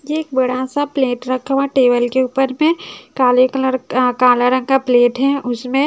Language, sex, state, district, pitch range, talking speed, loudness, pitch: Hindi, female, Haryana, Charkhi Dadri, 250-275 Hz, 195 wpm, -16 LUFS, 260 Hz